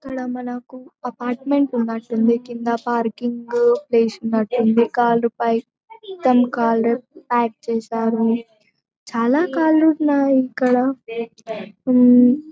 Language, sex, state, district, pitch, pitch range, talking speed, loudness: Telugu, female, Telangana, Karimnagar, 240 Hz, 230-260 Hz, 65 wpm, -19 LUFS